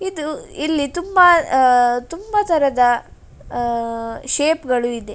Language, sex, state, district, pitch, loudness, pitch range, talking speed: Kannada, female, Karnataka, Dakshina Kannada, 280 Hz, -17 LUFS, 240-330 Hz, 115 wpm